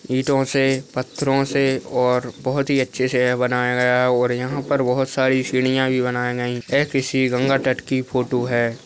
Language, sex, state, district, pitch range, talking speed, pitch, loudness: Hindi, male, Maharashtra, Nagpur, 125-135 Hz, 195 wpm, 130 Hz, -20 LUFS